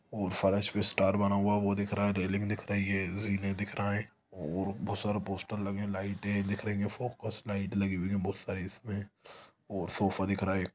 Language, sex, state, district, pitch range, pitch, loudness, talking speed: Hindi, male, Chhattisgarh, Sukma, 95-100 Hz, 100 Hz, -33 LUFS, 235 wpm